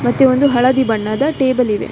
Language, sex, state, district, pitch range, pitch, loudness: Kannada, female, Karnataka, Dakshina Kannada, 235-265 Hz, 255 Hz, -14 LUFS